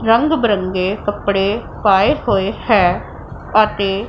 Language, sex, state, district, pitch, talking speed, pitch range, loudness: Punjabi, female, Punjab, Pathankot, 205 Hz, 105 wpm, 195-215 Hz, -16 LUFS